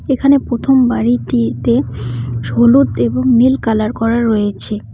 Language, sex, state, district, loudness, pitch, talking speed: Bengali, female, West Bengal, Cooch Behar, -14 LUFS, 215 Hz, 110 wpm